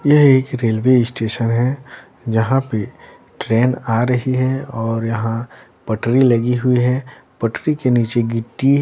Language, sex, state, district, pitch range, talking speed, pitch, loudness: Hindi, male, Bihar, Patna, 115-130 Hz, 145 wpm, 120 Hz, -17 LUFS